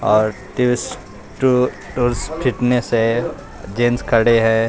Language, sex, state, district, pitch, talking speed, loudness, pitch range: Hindi, male, Maharashtra, Mumbai Suburban, 120 Hz, 100 wpm, -18 LUFS, 110-125 Hz